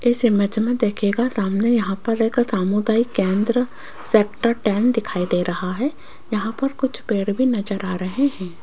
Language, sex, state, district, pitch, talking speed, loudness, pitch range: Hindi, female, Rajasthan, Jaipur, 220 Hz, 175 wpm, -21 LUFS, 200-240 Hz